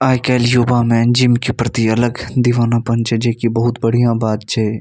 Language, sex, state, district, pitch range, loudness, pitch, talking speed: Maithili, male, Bihar, Saharsa, 115-120 Hz, -15 LUFS, 120 Hz, 200 wpm